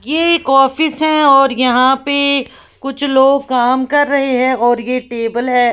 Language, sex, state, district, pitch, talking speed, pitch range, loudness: Hindi, female, Maharashtra, Washim, 270 Hz, 170 wpm, 250-280 Hz, -13 LUFS